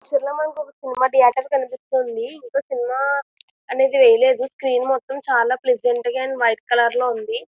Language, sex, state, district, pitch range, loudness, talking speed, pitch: Telugu, female, Andhra Pradesh, Visakhapatnam, 250-365 Hz, -19 LUFS, 160 wpm, 270 Hz